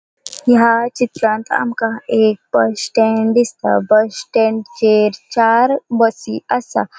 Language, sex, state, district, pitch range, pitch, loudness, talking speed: Konkani, female, Goa, North and South Goa, 215-235 Hz, 225 Hz, -15 LUFS, 105 wpm